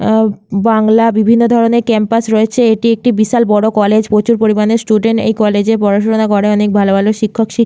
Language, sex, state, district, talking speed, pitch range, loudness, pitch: Bengali, female, West Bengal, Malda, 190 wpm, 210-230 Hz, -11 LUFS, 220 Hz